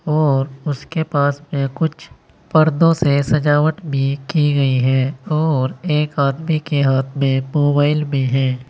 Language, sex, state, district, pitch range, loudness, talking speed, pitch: Hindi, male, Uttar Pradesh, Saharanpur, 135-155 Hz, -17 LUFS, 145 wpm, 145 Hz